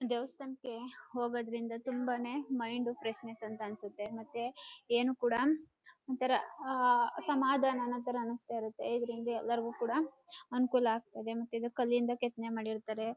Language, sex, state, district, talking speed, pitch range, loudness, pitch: Kannada, female, Karnataka, Chamarajanagar, 115 wpm, 230-260 Hz, -36 LUFS, 240 Hz